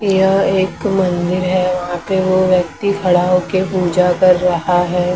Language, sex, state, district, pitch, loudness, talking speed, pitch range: Hindi, female, Maharashtra, Mumbai Suburban, 180 Hz, -15 LUFS, 150 wpm, 180-190 Hz